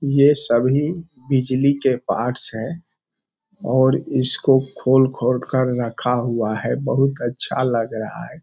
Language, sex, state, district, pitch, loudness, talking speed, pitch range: Hindi, male, Bihar, Araria, 130 Hz, -19 LUFS, 130 wpm, 125-140 Hz